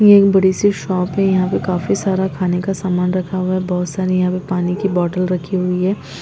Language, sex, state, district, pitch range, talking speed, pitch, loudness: Hindi, female, Chhattisgarh, Rajnandgaon, 180-190 Hz, 250 wpm, 185 Hz, -17 LUFS